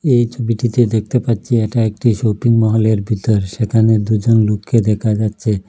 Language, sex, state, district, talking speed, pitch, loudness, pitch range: Bengali, male, Assam, Hailakandi, 150 wpm, 110 Hz, -15 LUFS, 110-115 Hz